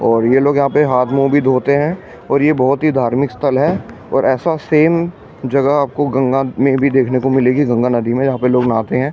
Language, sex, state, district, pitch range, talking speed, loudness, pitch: Hindi, male, Delhi, New Delhi, 130-145 Hz, 235 wpm, -14 LUFS, 135 Hz